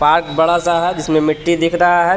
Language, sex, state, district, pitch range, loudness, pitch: Hindi, male, Jharkhand, Palamu, 160-175 Hz, -15 LUFS, 170 Hz